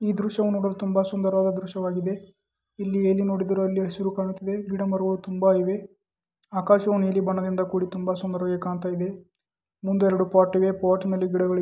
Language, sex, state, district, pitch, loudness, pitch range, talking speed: Kannada, male, Karnataka, Chamarajanagar, 190 Hz, -25 LUFS, 185-195 Hz, 150 wpm